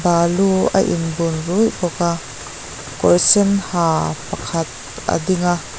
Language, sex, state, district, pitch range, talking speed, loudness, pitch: Mizo, female, Mizoram, Aizawl, 160-180 Hz, 145 wpm, -17 LUFS, 170 Hz